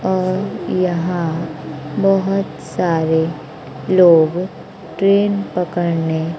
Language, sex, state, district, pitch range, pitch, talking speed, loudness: Hindi, female, Bihar, West Champaran, 160-190 Hz, 170 Hz, 65 wpm, -17 LUFS